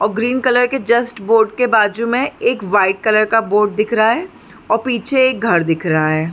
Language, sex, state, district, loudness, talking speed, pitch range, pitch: Hindi, male, Uttar Pradesh, Deoria, -15 LUFS, 225 wpm, 210-245 Hz, 225 Hz